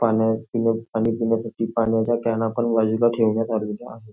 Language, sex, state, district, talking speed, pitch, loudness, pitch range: Marathi, male, Maharashtra, Nagpur, 130 wpm, 115 Hz, -22 LUFS, 110-115 Hz